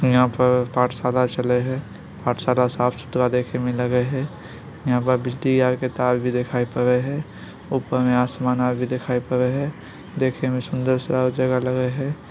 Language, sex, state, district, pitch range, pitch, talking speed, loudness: Maithili, male, Bihar, Bhagalpur, 125-130 Hz, 125 Hz, 175 wpm, -22 LUFS